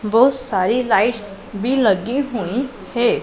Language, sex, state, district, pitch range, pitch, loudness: Hindi, female, Punjab, Pathankot, 210-260 Hz, 235 Hz, -18 LUFS